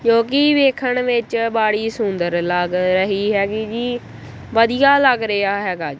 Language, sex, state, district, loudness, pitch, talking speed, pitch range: Punjabi, female, Punjab, Kapurthala, -17 LUFS, 225 Hz, 140 wpm, 195-245 Hz